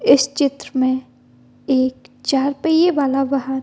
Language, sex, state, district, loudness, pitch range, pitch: Hindi, female, Bihar, Gopalganj, -18 LUFS, 260-280 Hz, 270 Hz